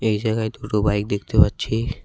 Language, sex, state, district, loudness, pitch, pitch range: Bengali, male, West Bengal, Cooch Behar, -21 LUFS, 105 Hz, 105-110 Hz